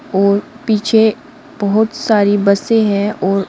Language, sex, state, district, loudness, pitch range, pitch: Hindi, female, Uttar Pradesh, Shamli, -14 LUFS, 200-225 Hz, 210 Hz